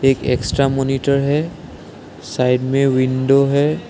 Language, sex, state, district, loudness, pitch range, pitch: Hindi, male, Assam, Sonitpur, -17 LUFS, 130-140 Hz, 135 Hz